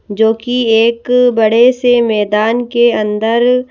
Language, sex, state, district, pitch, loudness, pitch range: Hindi, female, Madhya Pradesh, Bhopal, 235 Hz, -12 LUFS, 220-245 Hz